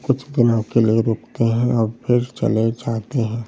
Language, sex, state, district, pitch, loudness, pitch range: Hindi, male, Uttar Pradesh, Hamirpur, 115 Hz, -19 LUFS, 115-120 Hz